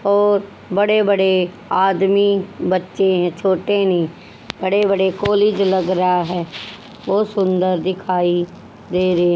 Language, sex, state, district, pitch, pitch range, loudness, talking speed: Hindi, female, Haryana, Rohtak, 190 Hz, 180-200 Hz, -17 LUFS, 120 wpm